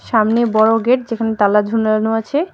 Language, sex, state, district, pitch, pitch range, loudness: Bengali, female, West Bengal, Alipurduar, 225 Hz, 215-235 Hz, -15 LUFS